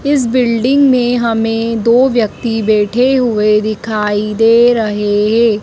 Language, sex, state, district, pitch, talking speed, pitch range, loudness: Hindi, female, Madhya Pradesh, Dhar, 230 Hz, 130 wpm, 215-245 Hz, -12 LUFS